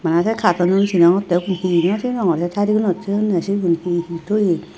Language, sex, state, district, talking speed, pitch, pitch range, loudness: Chakma, female, Tripura, Unakoti, 215 wpm, 180 Hz, 175-200 Hz, -18 LUFS